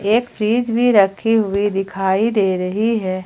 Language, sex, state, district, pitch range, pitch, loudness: Hindi, female, Jharkhand, Ranchi, 195-225 Hz, 205 Hz, -17 LUFS